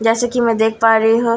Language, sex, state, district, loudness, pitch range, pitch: Hindi, female, Bihar, Katihar, -14 LUFS, 225-230 Hz, 225 Hz